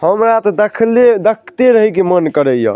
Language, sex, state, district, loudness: Maithili, male, Bihar, Madhepura, -11 LUFS